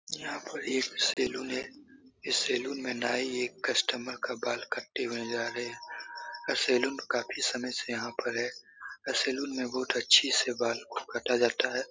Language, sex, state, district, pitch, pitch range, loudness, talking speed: Hindi, male, Bihar, Saran, 125 Hz, 120-130 Hz, -30 LUFS, 190 wpm